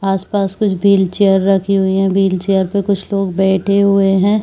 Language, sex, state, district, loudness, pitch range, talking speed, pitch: Hindi, female, Chhattisgarh, Bilaspur, -14 LUFS, 190-200 Hz, 175 wpm, 195 Hz